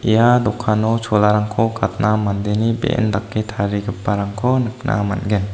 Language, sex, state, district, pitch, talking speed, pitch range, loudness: Garo, female, Meghalaya, South Garo Hills, 105 Hz, 110 wpm, 105-115 Hz, -18 LUFS